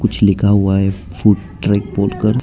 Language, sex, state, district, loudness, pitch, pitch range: Hindi, male, Arunachal Pradesh, Lower Dibang Valley, -15 LUFS, 100 Hz, 95-105 Hz